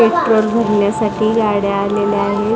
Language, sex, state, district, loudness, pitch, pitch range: Marathi, female, Maharashtra, Mumbai Suburban, -15 LUFS, 215 Hz, 205-220 Hz